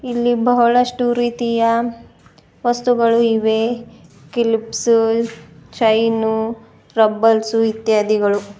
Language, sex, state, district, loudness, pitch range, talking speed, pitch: Kannada, female, Karnataka, Bidar, -17 LUFS, 220-235 Hz, 65 wpm, 225 Hz